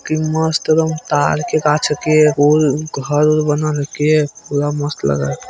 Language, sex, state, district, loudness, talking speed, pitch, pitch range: Hindi, male, Bihar, Madhepura, -16 LUFS, 195 wpm, 150 Hz, 145-155 Hz